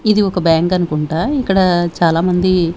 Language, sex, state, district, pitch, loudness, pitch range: Telugu, female, Andhra Pradesh, Sri Satya Sai, 180 Hz, -15 LUFS, 165-190 Hz